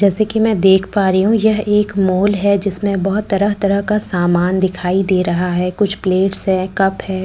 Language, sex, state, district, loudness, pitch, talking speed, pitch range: Hindi, female, Delhi, New Delhi, -15 LUFS, 195 Hz, 230 wpm, 185-205 Hz